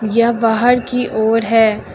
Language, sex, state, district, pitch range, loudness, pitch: Hindi, female, Uttar Pradesh, Lucknow, 220-245 Hz, -14 LUFS, 230 Hz